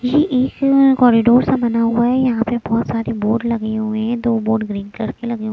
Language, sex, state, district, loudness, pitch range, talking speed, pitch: Hindi, female, Chhattisgarh, Raipur, -16 LUFS, 220-250 Hz, 230 wpm, 235 Hz